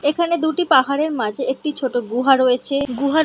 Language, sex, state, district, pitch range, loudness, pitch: Bengali, female, West Bengal, Malda, 260-310 Hz, -19 LUFS, 280 Hz